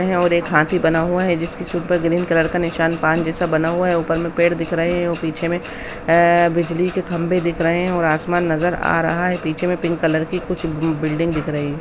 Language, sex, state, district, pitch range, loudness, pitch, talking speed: Hindi, female, Bihar, Samastipur, 165-175 Hz, -19 LUFS, 170 Hz, 260 wpm